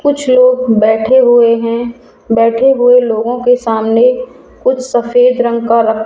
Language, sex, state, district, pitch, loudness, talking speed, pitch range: Hindi, female, Rajasthan, Jaipur, 240 Hz, -10 LUFS, 160 wpm, 230-255 Hz